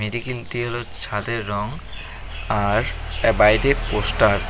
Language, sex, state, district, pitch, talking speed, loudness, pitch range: Bengali, male, West Bengal, Cooch Behar, 105 Hz, 95 wpm, -19 LUFS, 100-115 Hz